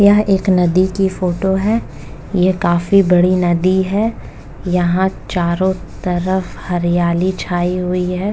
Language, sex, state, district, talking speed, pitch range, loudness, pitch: Hindi, female, Uttar Pradesh, Jalaun, 130 wpm, 175-190 Hz, -16 LUFS, 180 Hz